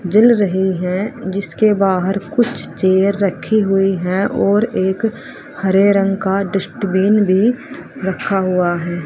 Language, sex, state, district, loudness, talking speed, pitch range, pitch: Hindi, female, Haryana, Rohtak, -16 LUFS, 130 wpm, 190-205 Hz, 195 Hz